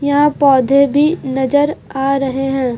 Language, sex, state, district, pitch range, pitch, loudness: Hindi, female, Chhattisgarh, Raipur, 265-285 Hz, 275 Hz, -14 LUFS